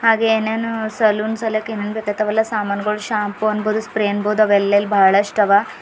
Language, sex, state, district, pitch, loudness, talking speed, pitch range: Kannada, female, Karnataka, Bidar, 215 Hz, -18 LUFS, 165 wpm, 205-220 Hz